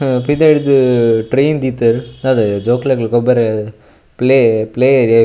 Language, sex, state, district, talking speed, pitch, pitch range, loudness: Tulu, male, Karnataka, Dakshina Kannada, 135 wpm, 125 Hz, 115-130 Hz, -13 LUFS